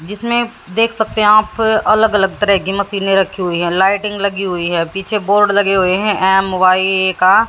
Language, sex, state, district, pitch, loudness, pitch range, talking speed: Hindi, female, Haryana, Jhajjar, 195 Hz, -14 LUFS, 190-210 Hz, 200 wpm